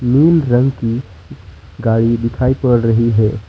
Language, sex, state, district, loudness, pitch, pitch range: Hindi, male, West Bengal, Alipurduar, -14 LUFS, 115 Hz, 110-130 Hz